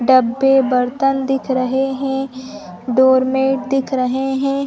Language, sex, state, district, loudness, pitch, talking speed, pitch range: Hindi, female, Chhattisgarh, Sarguja, -16 LUFS, 265 Hz, 140 wpm, 255-270 Hz